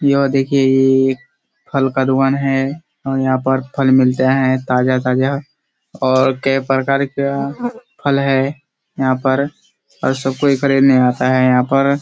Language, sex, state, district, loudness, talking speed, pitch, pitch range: Hindi, male, Bihar, Kishanganj, -16 LUFS, 155 wpm, 135 Hz, 130-140 Hz